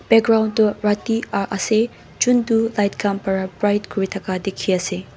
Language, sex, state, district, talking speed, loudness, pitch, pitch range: Nagamese, female, Mizoram, Aizawl, 150 wpm, -20 LUFS, 205 Hz, 195-225 Hz